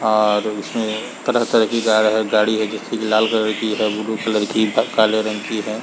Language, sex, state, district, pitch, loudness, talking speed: Hindi, male, Chhattisgarh, Sarguja, 110 Hz, -18 LUFS, 215 wpm